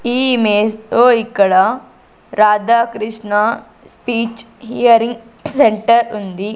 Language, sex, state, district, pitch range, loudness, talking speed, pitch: Telugu, female, Andhra Pradesh, Sri Satya Sai, 215-240 Hz, -14 LUFS, 80 wpm, 230 Hz